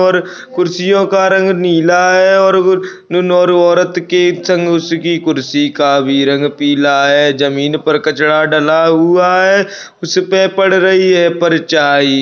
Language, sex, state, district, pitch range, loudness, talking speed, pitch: Hindi, male, Uttarakhand, Uttarkashi, 150-185 Hz, -11 LUFS, 145 wpm, 175 Hz